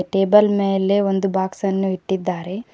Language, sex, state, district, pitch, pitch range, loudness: Kannada, female, Karnataka, Koppal, 195 Hz, 190-200 Hz, -19 LUFS